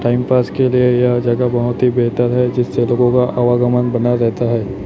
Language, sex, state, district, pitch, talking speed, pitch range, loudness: Hindi, male, Chhattisgarh, Raipur, 120 Hz, 210 wpm, 120-125 Hz, -15 LUFS